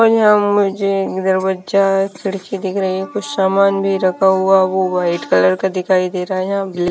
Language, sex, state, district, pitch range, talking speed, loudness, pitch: Hindi, female, Bihar, Kaimur, 185-195 Hz, 210 wpm, -16 LUFS, 190 Hz